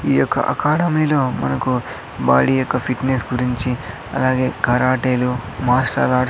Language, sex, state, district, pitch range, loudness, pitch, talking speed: Telugu, male, Andhra Pradesh, Sri Satya Sai, 120-130 Hz, -18 LUFS, 125 Hz, 135 wpm